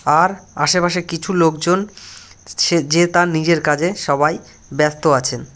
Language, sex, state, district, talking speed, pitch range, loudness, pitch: Bengali, male, West Bengal, North 24 Parganas, 130 wpm, 150-175 Hz, -16 LUFS, 165 Hz